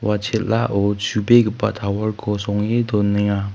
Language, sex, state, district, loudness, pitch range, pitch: Garo, male, Meghalaya, West Garo Hills, -19 LUFS, 100-110 Hz, 105 Hz